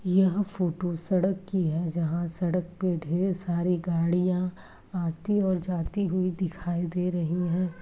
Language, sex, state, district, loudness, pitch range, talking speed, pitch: Hindi, female, Uttar Pradesh, Jalaun, -28 LUFS, 170-185 Hz, 145 wpm, 180 Hz